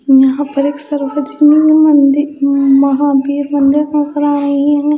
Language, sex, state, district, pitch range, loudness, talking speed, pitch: Hindi, female, Bihar, Katihar, 280-295 Hz, -11 LUFS, 135 wpm, 285 Hz